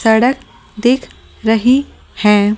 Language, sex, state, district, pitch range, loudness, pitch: Hindi, female, Delhi, New Delhi, 215-250 Hz, -14 LUFS, 225 Hz